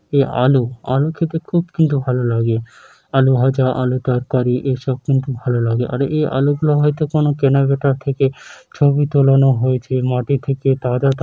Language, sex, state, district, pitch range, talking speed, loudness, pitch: Bengali, male, West Bengal, Dakshin Dinajpur, 125-140 Hz, 180 wpm, -17 LUFS, 135 Hz